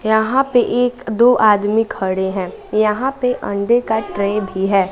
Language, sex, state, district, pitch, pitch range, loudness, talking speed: Hindi, female, Bihar, West Champaran, 215 Hz, 200-245 Hz, -17 LUFS, 170 wpm